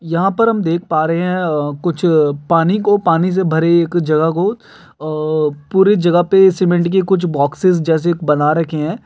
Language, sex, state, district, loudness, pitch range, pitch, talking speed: Hindi, male, Uttar Pradesh, Gorakhpur, -15 LUFS, 155-185 Hz, 170 Hz, 190 wpm